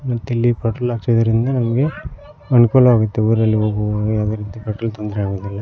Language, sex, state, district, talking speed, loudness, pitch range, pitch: Kannada, male, Karnataka, Koppal, 115 wpm, -17 LUFS, 105-120 Hz, 115 Hz